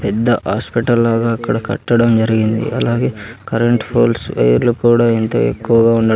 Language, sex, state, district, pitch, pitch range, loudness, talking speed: Telugu, male, Andhra Pradesh, Sri Satya Sai, 115 Hz, 110-120 Hz, -15 LUFS, 135 wpm